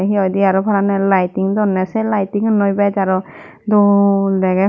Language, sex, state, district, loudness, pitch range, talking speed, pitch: Chakma, female, Tripura, Dhalai, -15 LUFS, 190-205 Hz, 165 wpm, 195 Hz